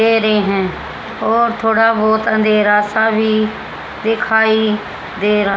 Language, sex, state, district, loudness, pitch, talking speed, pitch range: Hindi, female, Haryana, Jhajjar, -14 LUFS, 220 Hz, 130 wpm, 210-225 Hz